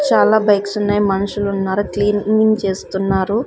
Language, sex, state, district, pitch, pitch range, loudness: Telugu, female, Andhra Pradesh, Sri Satya Sai, 205 Hz, 195-210 Hz, -16 LUFS